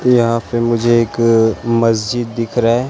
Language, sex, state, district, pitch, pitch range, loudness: Hindi, male, Chhattisgarh, Raipur, 115 Hz, 115-120 Hz, -15 LUFS